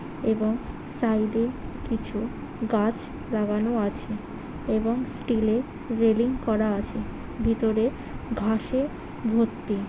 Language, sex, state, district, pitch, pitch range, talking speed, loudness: Bengali, male, West Bengal, Paschim Medinipur, 225 Hz, 215-235 Hz, 95 wpm, -27 LUFS